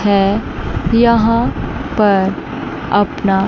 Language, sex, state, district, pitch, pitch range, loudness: Hindi, female, Chandigarh, Chandigarh, 205 Hz, 195-230 Hz, -15 LUFS